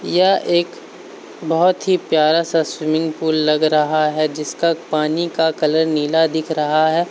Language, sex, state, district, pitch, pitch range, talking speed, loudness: Hindi, male, Uttar Pradesh, Varanasi, 160 Hz, 155-170 Hz, 160 wpm, -17 LUFS